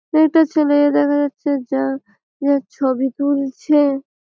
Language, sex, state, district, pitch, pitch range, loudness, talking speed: Bengali, female, West Bengal, Malda, 285 Hz, 270-290 Hz, -17 LUFS, 115 wpm